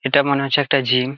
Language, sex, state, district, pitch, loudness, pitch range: Bengali, male, West Bengal, Jalpaiguri, 140 Hz, -17 LUFS, 135-140 Hz